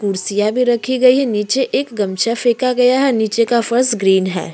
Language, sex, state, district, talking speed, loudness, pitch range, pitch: Hindi, female, Uttarakhand, Tehri Garhwal, 210 wpm, -15 LUFS, 210-250 Hz, 235 Hz